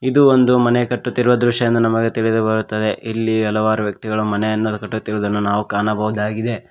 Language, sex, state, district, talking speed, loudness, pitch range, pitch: Kannada, male, Karnataka, Koppal, 145 wpm, -17 LUFS, 105-120 Hz, 110 Hz